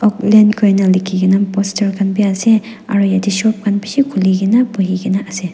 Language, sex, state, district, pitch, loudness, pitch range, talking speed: Nagamese, female, Nagaland, Dimapur, 200 Hz, -14 LUFS, 195-215 Hz, 150 wpm